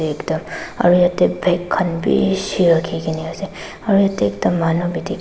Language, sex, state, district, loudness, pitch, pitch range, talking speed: Nagamese, female, Nagaland, Dimapur, -18 LUFS, 175 Hz, 165-190 Hz, 175 wpm